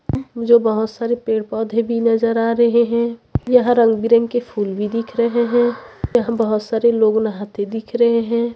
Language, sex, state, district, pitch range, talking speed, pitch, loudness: Hindi, female, Chhattisgarh, Raipur, 220-235 Hz, 175 wpm, 230 Hz, -17 LUFS